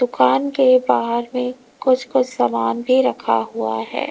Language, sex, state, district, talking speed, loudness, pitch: Hindi, female, Uttar Pradesh, Lalitpur, 160 wpm, -18 LUFS, 250 Hz